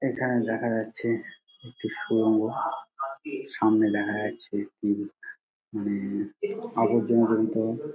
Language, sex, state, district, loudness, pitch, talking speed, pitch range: Bengali, male, West Bengal, Dakshin Dinajpur, -27 LUFS, 110 Hz, 100 wpm, 105-115 Hz